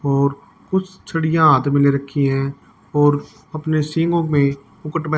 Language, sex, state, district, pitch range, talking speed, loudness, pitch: Hindi, female, Haryana, Charkhi Dadri, 140-160 Hz, 160 wpm, -18 LUFS, 145 Hz